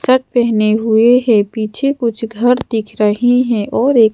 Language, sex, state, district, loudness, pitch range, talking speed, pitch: Hindi, female, Madhya Pradesh, Bhopal, -14 LUFS, 215-245 Hz, 175 wpm, 230 Hz